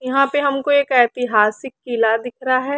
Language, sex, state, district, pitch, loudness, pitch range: Hindi, female, Chandigarh, Chandigarh, 255 Hz, -17 LUFS, 240-275 Hz